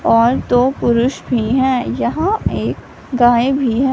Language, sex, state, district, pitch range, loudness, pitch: Hindi, female, Punjab, Fazilka, 240-265 Hz, -15 LUFS, 250 Hz